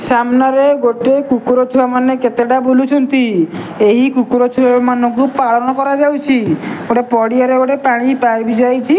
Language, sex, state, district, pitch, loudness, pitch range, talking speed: Odia, male, Odisha, Nuapada, 250 Hz, -13 LUFS, 240-265 Hz, 100 wpm